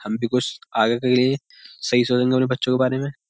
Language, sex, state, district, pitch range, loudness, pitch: Hindi, male, Uttar Pradesh, Jyotiba Phule Nagar, 120-130 Hz, -21 LUFS, 125 Hz